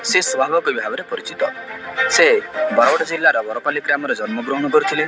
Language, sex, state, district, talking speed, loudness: Odia, male, Odisha, Malkangiri, 140 wpm, -18 LUFS